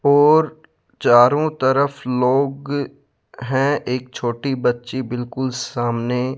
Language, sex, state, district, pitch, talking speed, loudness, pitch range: Hindi, male, Rajasthan, Jaipur, 130 Hz, 105 wpm, -19 LUFS, 125-140 Hz